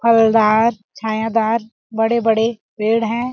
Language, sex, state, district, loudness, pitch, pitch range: Hindi, female, Chhattisgarh, Balrampur, -17 LUFS, 225 Hz, 220-230 Hz